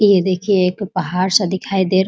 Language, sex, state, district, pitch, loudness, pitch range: Hindi, female, Bihar, Muzaffarpur, 190 Hz, -17 LUFS, 185-195 Hz